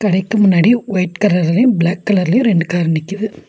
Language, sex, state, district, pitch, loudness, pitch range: Tamil, female, Tamil Nadu, Nilgiris, 195 Hz, -14 LUFS, 175-215 Hz